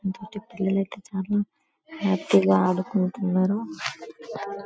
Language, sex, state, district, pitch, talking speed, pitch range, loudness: Telugu, male, Telangana, Karimnagar, 190 Hz, 65 wpm, 185-200 Hz, -25 LUFS